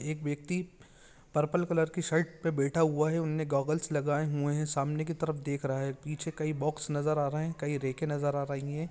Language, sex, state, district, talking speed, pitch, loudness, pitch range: Hindi, male, Jharkhand, Jamtara, 230 wpm, 150 Hz, -32 LUFS, 145-160 Hz